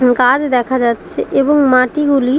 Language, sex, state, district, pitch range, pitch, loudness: Bengali, female, West Bengal, Dakshin Dinajpur, 250-280 Hz, 255 Hz, -13 LUFS